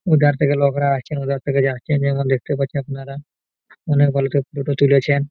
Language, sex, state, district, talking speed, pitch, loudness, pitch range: Bengali, male, West Bengal, Malda, 160 wpm, 140 Hz, -19 LUFS, 135-145 Hz